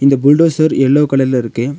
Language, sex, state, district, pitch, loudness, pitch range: Tamil, female, Tamil Nadu, Nilgiris, 140 Hz, -12 LUFS, 130-150 Hz